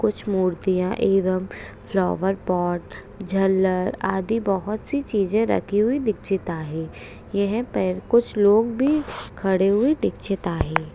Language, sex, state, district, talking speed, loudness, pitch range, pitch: Hindi, female, Maharashtra, Aurangabad, 125 wpm, -22 LUFS, 185-220 Hz, 195 Hz